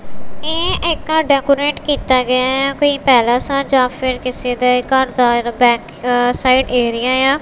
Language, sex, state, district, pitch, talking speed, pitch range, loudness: Punjabi, female, Punjab, Kapurthala, 255 Hz, 155 wpm, 250-280 Hz, -14 LUFS